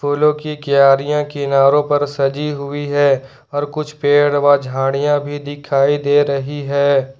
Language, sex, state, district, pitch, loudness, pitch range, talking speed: Hindi, male, Jharkhand, Ranchi, 145 Hz, -16 LUFS, 140-145 Hz, 150 wpm